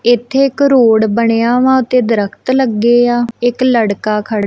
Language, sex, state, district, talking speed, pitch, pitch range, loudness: Punjabi, female, Punjab, Kapurthala, 160 wpm, 240 Hz, 220-255 Hz, -12 LUFS